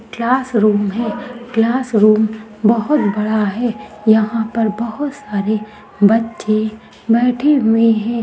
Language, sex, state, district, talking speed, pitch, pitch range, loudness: Hindi, female, Bihar, Saharsa, 100 wpm, 225 Hz, 215-235 Hz, -16 LUFS